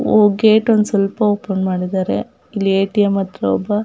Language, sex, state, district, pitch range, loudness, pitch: Kannada, female, Karnataka, Dakshina Kannada, 195-215 Hz, -16 LUFS, 200 Hz